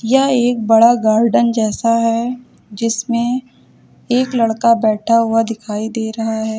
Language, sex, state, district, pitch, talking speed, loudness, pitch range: Hindi, female, Uttar Pradesh, Lucknow, 230 Hz, 135 wpm, -15 LUFS, 225-235 Hz